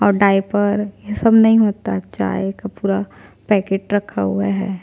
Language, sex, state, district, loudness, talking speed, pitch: Hindi, female, Chhattisgarh, Jashpur, -18 LUFS, 175 wpm, 195 Hz